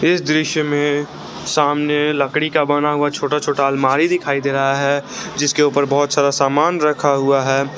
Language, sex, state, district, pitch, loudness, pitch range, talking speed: Hindi, male, Jharkhand, Garhwa, 145 Hz, -17 LUFS, 140-150 Hz, 175 wpm